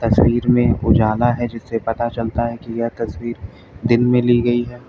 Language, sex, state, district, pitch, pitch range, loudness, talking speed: Hindi, male, Uttar Pradesh, Lalitpur, 120 Hz, 115-120 Hz, -18 LUFS, 195 wpm